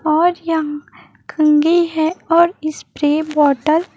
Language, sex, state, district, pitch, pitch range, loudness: Hindi, female, Chhattisgarh, Raipur, 315 Hz, 305-335 Hz, -16 LUFS